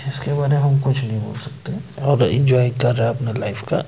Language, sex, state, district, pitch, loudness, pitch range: Hindi, male, Madhya Pradesh, Bhopal, 130 Hz, -19 LUFS, 120-140 Hz